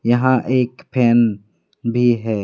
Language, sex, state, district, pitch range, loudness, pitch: Hindi, male, West Bengal, Alipurduar, 110-125 Hz, -17 LUFS, 120 Hz